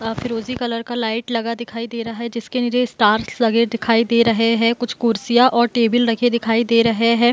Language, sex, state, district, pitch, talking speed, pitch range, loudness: Hindi, female, Bihar, Gopalganj, 230 Hz, 230 wpm, 230-240 Hz, -18 LUFS